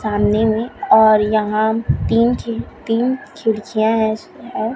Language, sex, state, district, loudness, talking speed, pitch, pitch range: Hindi, female, Chhattisgarh, Raipur, -17 LUFS, 125 wpm, 220 Hz, 215-230 Hz